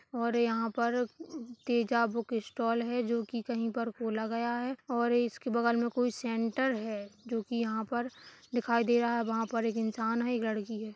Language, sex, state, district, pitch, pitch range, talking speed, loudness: Hindi, female, Chhattisgarh, Kabirdham, 235 Hz, 225-240 Hz, 195 wpm, -32 LUFS